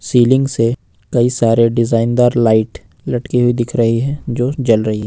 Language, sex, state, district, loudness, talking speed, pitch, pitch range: Hindi, male, Jharkhand, Ranchi, -15 LUFS, 180 wpm, 120 Hz, 115-125 Hz